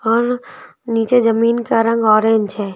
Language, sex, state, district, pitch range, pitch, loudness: Hindi, female, Madhya Pradesh, Bhopal, 220-235 Hz, 225 Hz, -15 LUFS